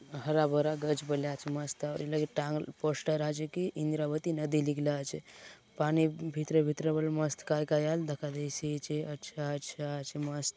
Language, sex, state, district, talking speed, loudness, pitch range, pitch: Halbi, male, Chhattisgarh, Bastar, 185 wpm, -33 LUFS, 145-155 Hz, 150 Hz